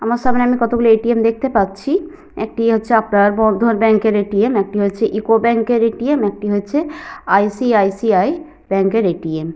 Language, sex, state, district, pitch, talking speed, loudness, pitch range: Bengali, female, West Bengal, Paschim Medinipur, 225 Hz, 170 wpm, -16 LUFS, 205-240 Hz